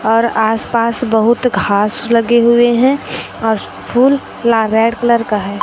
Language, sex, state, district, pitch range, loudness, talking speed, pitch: Hindi, female, Chhattisgarh, Raipur, 220-240 Hz, -13 LUFS, 150 wpm, 230 Hz